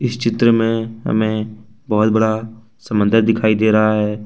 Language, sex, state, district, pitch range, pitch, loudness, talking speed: Hindi, male, Jharkhand, Ranchi, 110-115 Hz, 110 Hz, -16 LUFS, 155 wpm